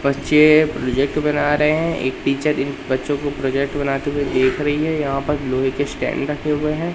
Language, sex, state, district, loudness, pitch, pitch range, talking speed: Hindi, male, Madhya Pradesh, Katni, -19 LUFS, 145 Hz, 135-150 Hz, 205 wpm